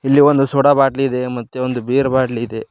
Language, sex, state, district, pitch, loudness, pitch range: Kannada, male, Karnataka, Koppal, 130 Hz, -16 LUFS, 125-135 Hz